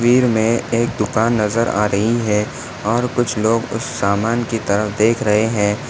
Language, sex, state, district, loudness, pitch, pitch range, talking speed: Hindi, male, Maharashtra, Nagpur, -18 LUFS, 115 Hz, 105-115 Hz, 185 wpm